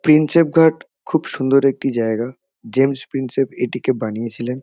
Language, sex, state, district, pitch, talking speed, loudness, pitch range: Bengali, male, West Bengal, Kolkata, 135 Hz, 130 wpm, -18 LUFS, 125-155 Hz